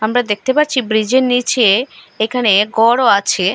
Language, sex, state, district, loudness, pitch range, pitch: Bengali, female, Assam, Hailakandi, -14 LUFS, 215-250 Hz, 235 Hz